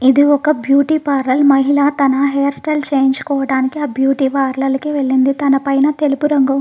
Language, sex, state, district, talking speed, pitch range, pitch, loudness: Telugu, female, Telangana, Nalgonda, 165 wpm, 270-290 Hz, 275 Hz, -14 LUFS